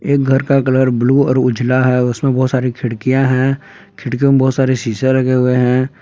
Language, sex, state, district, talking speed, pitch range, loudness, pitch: Hindi, male, Jharkhand, Palamu, 210 wpm, 125-135 Hz, -14 LUFS, 130 Hz